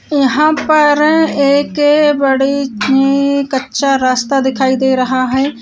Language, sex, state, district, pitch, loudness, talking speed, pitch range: Hindi, female, Uttarakhand, Uttarkashi, 275 Hz, -12 LUFS, 115 wpm, 265-290 Hz